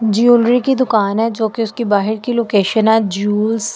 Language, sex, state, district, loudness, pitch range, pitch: Hindi, female, Delhi, New Delhi, -15 LUFS, 210-235 Hz, 220 Hz